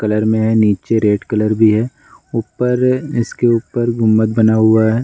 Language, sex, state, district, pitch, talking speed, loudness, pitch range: Hindi, male, Bihar, Gaya, 110 Hz, 165 wpm, -15 LUFS, 110-120 Hz